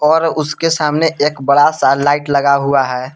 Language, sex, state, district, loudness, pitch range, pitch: Hindi, male, Jharkhand, Palamu, -13 LUFS, 140-155 Hz, 145 Hz